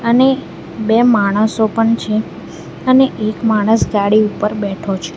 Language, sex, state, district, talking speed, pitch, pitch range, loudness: Gujarati, female, Gujarat, Valsad, 140 wpm, 215 Hz, 210-230 Hz, -14 LUFS